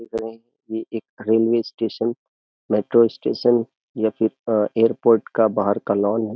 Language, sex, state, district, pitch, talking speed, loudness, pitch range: Hindi, male, Uttar Pradesh, Jyotiba Phule Nagar, 115 Hz, 130 wpm, -21 LUFS, 110-115 Hz